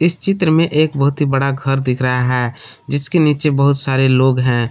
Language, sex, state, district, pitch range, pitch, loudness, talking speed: Hindi, male, Jharkhand, Palamu, 130-155 Hz, 140 Hz, -15 LUFS, 215 wpm